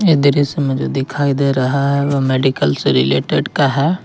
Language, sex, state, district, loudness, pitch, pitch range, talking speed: Hindi, male, Jharkhand, Ranchi, -15 LUFS, 140 Hz, 135-145 Hz, 220 wpm